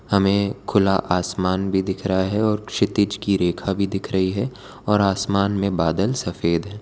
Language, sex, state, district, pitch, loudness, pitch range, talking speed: Hindi, male, Gujarat, Valsad, 100 Hz, -21 LUFS, 95-100 Hz, 185 wpm